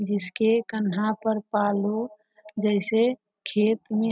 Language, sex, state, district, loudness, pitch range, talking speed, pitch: Hindi, female, Bihar, Darbhanga, -25 LUFS, 205-220 Hz, 115 wpm, 215 Hz